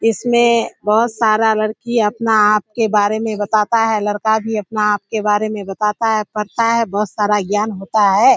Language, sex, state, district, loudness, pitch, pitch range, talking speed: Hindi, female, Bihar, Kishanganj, -16 LUFS, 215 Hz, 210-225 Hz, 195 wpm